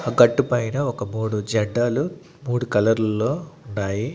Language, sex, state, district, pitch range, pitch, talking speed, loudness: Telugu, male, Andhra Pradesh, Annamaya, 110-140 Hz, 120 Hz, 160 wpm, -22 LUFS